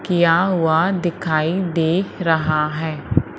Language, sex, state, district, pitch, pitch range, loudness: Hindi, female, Madhya Pradesh, Umaria, 165 Hz, 160-180 Hz, -19 LUFS